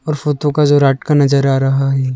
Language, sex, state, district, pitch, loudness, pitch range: Hindi, male, Arunachal Pradesh, Lower Dibang Valley, 140 Hz, -13 LUFS, 135-150 Hz